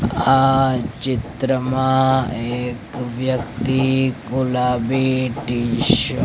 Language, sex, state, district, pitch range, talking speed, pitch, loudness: Gujarati, male, Gujarat, Gandhinagar, 120-130 Hz, 60 wpm, 130 Hz, -19 LUFS